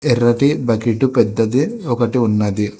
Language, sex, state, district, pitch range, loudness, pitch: Telugu, male, Telangana, Hyderabad, 110-130 Hz, -16 LUFS, 120 Hz